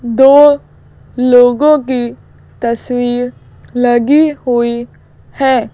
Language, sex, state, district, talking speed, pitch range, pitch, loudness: Hindi, female, Madhya Pradesh, Bhopal, 75 wpm, 240-275 Hz, 245 Hz, -11 LUFS